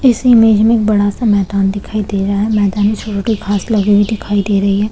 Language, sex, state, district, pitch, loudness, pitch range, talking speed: Hindi, female, Chhattisgarh, Balrampur, 205 Hz, -13 LUFS, 200-220 Hz, 255 wpm